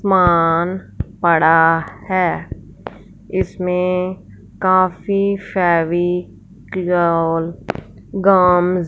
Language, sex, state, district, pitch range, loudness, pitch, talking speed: Hindi, female, Punjab, Fazilka, 165-185 Hz, -17 LUFS, 180 Hz, 55 wpm